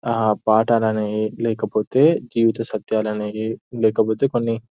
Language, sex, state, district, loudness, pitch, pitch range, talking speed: Telugu, male, Telangana, Nalgonda, -20 LUFS, 110 Hz, 110-115 Hz, 100 wpm